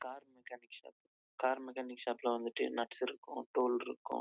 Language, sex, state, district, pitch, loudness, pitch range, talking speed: Tamil, male, Karnataka, Chamarajanagar, 125 Hz, -39 LUFS, 120-130 Hz, 45 wpm